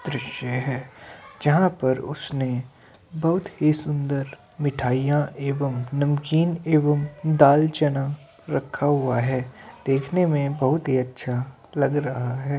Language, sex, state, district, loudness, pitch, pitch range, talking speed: Hindi, male, Uttar Pradesh, Hamirpur, -23 LUFS, 140 Hz, 130-150 Hz, 120 wpm